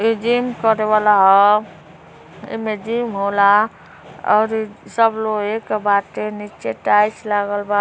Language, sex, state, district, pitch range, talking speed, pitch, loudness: Hindi, female, Uttar Pradesh, Gorakhpur, 200-220 Hz, 125 wpm, 210 Hz, -17 LUFS